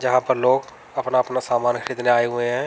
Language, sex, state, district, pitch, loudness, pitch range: Hindi, male, Uttar Pradesh, Varanasi, 125 Hz, -21 LUFS, 120-130 Hz